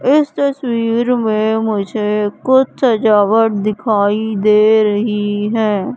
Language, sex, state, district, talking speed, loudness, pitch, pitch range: Hindi, female, Madhya Pradesh, Katni, 100 wpm, -14 LUFS, 220 Hz, 210-235 Hz